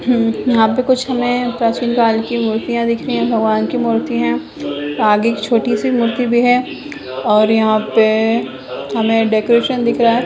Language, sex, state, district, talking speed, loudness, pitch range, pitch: Hindi, female, Bihar, Purnia, 175 wpm, -15 LUFS, 220-245 Hz, 230 Hz